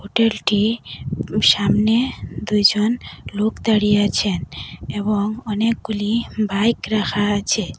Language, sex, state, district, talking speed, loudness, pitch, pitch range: Bengali, female, Assam, Hailakandi, 90 wpm, -19 LUFS, 210 Hz, 205-220 Hz